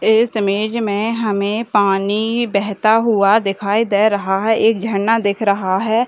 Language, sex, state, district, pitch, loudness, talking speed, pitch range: Hindi, female, Bihar, Madhepura, 210 Hz, -16 LUFS, 170 wpm, 200-225 Hz